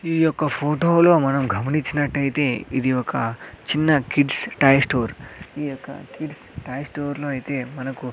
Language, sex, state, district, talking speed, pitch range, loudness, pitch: Telugu, male, Andhra Pradesh, Sri Satya Sai, 150 wpm, 130-150 Hz, -21 LUFS, 140 Hz